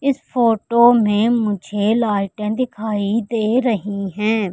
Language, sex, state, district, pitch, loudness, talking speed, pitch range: Hindi, female, Madhya Pradesh, Katni, 220 Hz, -18 LUFS, 120 wpm, 210-235 Hz